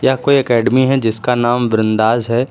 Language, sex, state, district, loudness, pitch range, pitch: Hindi, male, Uttar Pradesh, Lucknow, -14 LUFS, 115-130 Hz, 120 Hz